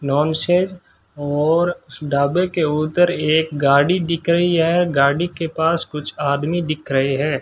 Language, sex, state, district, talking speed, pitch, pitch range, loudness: Hindi, male, Rajasthan, Bikaner, 145 wpm, 160 Hz, 145-175 Hz, -18 LUFS